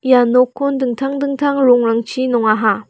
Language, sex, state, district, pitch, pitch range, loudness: Garo, female, Meghalaya, West Garo Hills, 255 Hz, 240-275 Hz, -15 LUFS